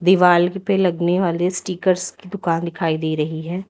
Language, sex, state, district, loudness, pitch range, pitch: Hindi, female, Uttar Pradesh, Lalitpur, -19 LUFS, 170-185 Hz, 180 Hz